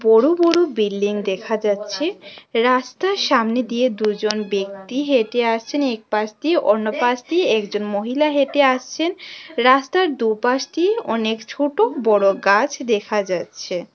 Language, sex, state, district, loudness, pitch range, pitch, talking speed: Bengali, female, Tripura, West Tripura, -19 LUFS, 210-290 Hz, 240 Hz, 125 wpm